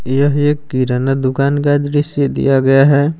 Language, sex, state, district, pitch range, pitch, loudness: Hindi, male, Jharkhand, Palamu, 135-145 Hz, 140 Hz, -14 LUFS